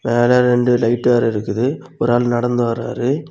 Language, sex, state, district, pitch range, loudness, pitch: Tamil, male, Tamil Nadu, Kanyakumari, 120-125 Hz, -17 LUFS, 120 Hz